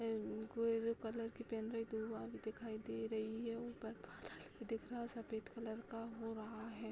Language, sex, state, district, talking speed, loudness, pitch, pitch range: Hindi, female, Uttar Pradesh, Hamirpur, 145 wpm, -45 LUFS, 225 Hz, 220-230 Hz